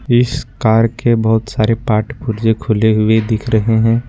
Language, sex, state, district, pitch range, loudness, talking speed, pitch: Hindi, male, Jharkhand, Ranchi, 110-115 Hz, -14 LUFS, 175 wpm, 110 Hz